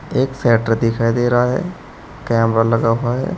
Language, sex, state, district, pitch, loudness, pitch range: Hindi, male, Uttar Pradesh, Saharanpur, 115 Hz, -17 LUFS, 115-125 Hz